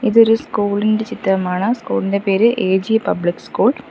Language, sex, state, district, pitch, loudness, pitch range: Malayalam, female, Kerala, Kollam, 205 Hz, -17 LUFS, 190-225 Hz